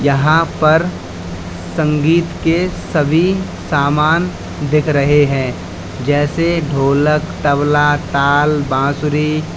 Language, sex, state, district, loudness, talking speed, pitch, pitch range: Hindi, male, Uttar Pradesh, Lalitpur, -15 LUFS, 90 wpm, 145 Hz, 140-155 Hz